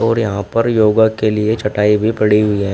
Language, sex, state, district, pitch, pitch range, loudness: Hindi, male, Uttar Pradesh, Shamli, 105 Hz, 105-110 Hz, -14 LUFS